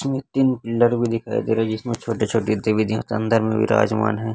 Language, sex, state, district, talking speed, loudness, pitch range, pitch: Hindi, male, Chhattisgarh, Raipur, 220 wpm, -21 LUFS, 110-120 Hz, 115 Hz